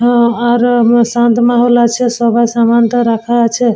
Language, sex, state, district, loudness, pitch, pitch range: Bengali, female, West Bengal, Purulia, -11 LUFS, 235 Hz, 235-240 Hz